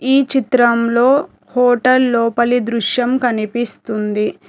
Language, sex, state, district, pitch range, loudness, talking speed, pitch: Telugu, female, Telangana, Hyderabad, 230-255 Hz, -15 LUFS, 80 wpm, 245 Hz